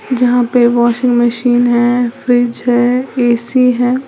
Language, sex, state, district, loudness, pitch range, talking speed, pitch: Hindi, female, Uttar Pradesh, Lalitpur, -12 LUFS, 240-250 Hz, 135 wpm, 245 Hz